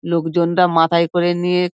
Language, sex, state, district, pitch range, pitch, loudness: Bengali, female, West Bengal, Dakshin Dinajpur, 170-175 Hz, 175 Hz, -16 LUFS